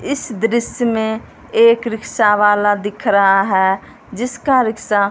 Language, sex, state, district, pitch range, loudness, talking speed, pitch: Hindi, female, Punjab, Fazilka, 205-235 Hz, -16 LUFS, 140 wpm, 220 Hz